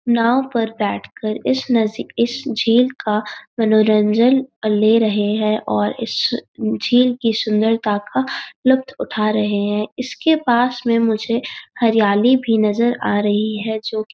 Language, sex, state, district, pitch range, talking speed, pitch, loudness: Hindi, female, Uttarakhand, Uttarkashi, 215-245 Hz, 150 wpm, 225 Hz, -18 LUFS